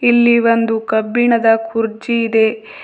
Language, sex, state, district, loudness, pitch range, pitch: Kannada, female, Karnataka, Bidar, -14 LUFS, 220-235 Hz, 225 Hz